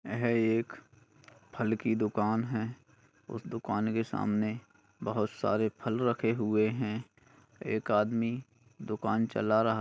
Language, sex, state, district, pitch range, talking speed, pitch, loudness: Hindi, male, Bihar, Bhagalpur, 110-115 Hz, 130 wpm, 110 Hz, -32 LUFS